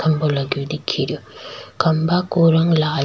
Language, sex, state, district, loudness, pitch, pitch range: Rajasthani, female, Rajasthan, Nagaur, -18 LUFS, 155 Hz, 150-165 Hz